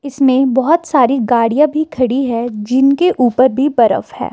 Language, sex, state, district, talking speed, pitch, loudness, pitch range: Hindi, female, Himachal Pradesh, Shimla, 165 wpm, 265 Hz, -13 LUFS, 245-285 Hz